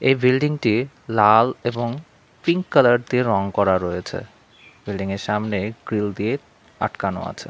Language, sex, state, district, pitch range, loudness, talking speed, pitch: Bengali, male, West Bengal, Cooch Behar, 100-125 Hz, -21 LUFS, 145 wpm, 110 Hz